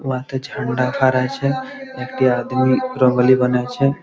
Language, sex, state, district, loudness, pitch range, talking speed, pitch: Bengali, male, West Bengal, Malda, -18 LUFS, 125-135 Hz, 120 wpm, 130 Hz